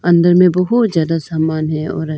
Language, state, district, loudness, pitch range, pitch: Hindi, Arunachal Pradesh, Lower Dibang Valley, -14 LUFS, 160-180 Hz, 165 Hz